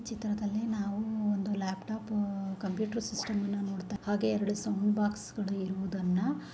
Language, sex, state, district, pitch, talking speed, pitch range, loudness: Kannada, female, Karnataka, Bellary, 205 Hz, 120 wpm, 195-215 Hz, -33 LUFS